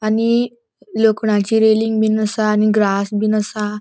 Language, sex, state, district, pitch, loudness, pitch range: Konkani, female, Goa, North and South Goa, 215 Hz, -16 LUFS, 210-220 Hz